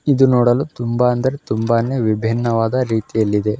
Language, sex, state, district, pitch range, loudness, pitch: Kannada, male, Karnataka, Bellary, 110-130 Hz, -17 LUFS, 120 Hz